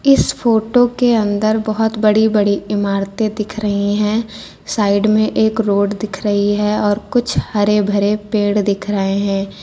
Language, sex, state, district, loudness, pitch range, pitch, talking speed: Hindi, female, Uttar Pradesh, Lucknow, -16 LUFS, 205-220 Hz, 210 Hz, 160 wpm